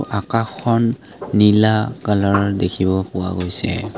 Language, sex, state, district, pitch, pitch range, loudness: Assamese, male, Assam, Kamrup Metropolitan, 105 Hz, 95-110 Hz, -18 LUFS